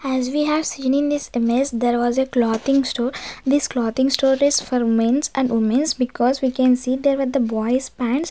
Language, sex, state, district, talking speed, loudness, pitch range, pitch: English, female, Maharashtra, Gondia, 210 wpm, -20 LUFS, 240-275 Hz, 260 Hz